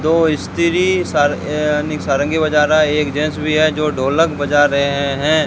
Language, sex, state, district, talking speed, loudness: Hindi, male, Rajasthan, Bikaner, 195 wpm, -16 LUFS